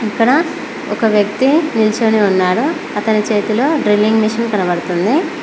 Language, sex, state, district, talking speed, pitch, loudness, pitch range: Telugu, female, Telangana, Mahabubabad, 110 wpm, 220 Hz, -14 LUFS, 210-280 Hz